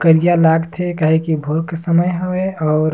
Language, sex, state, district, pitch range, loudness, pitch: Surgujia, male, Chhattisgarh, Sarguja, 160-175 Hz, -16 LUFS, 165 Hz